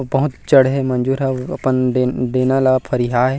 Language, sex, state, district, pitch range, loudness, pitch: Chhattisgarhi, male, Chhattisgarh, Rajnandgaon, 125-135 Hz, -17 LUFS, 130 Hz